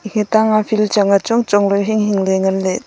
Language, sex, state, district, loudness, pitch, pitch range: Wancho, female, Arunachal Pradesh, Longding, -15 LUFS, 210 Hz, 200-215 Hz